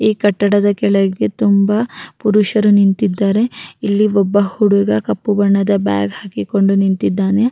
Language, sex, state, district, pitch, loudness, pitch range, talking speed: Kannada, female, Karnataka, Raichur, 200 Hz, -15 LUFS, 195-210 Hz, 110 wpm